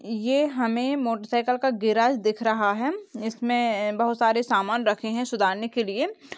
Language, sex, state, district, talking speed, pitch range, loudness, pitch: Hindi, female, Chhattisgarh, Bastar, 180 wpm, 220-245 Hz, -24 LUFS, 235 Hz